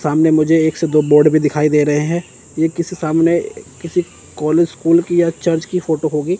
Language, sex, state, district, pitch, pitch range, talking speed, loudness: Hindi, male, Chandigarh, Chandigarh, 160 Hz, 150-170 Hz, 215 wpm, -15 LUFS